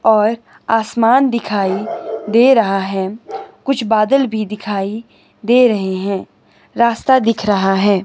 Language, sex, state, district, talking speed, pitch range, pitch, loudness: Hindi, male, Himachal Pradesh, Shimla, 125 wpm, 200-235 Hz, 220 Hz, -15 LUFS